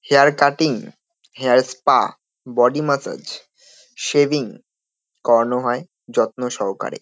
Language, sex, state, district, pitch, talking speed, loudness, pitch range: Bengali, male, West Bengal, North 24 Parganas, 130 Hz, 95 wpm, -19 LUFS, 125-145 Hz